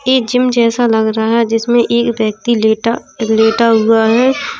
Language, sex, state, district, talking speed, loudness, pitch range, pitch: Hindi, female, Uttar Pradesh, Jalaun, 180 wpm, -12 LUFS, 220-240 Hz, 230 Hz